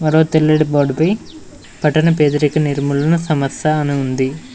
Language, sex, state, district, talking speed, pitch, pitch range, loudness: Telugu, male, Telangana, Mahabubabad, 120 wpm, 150 Hz, 145-155 Hz, -15 LUFS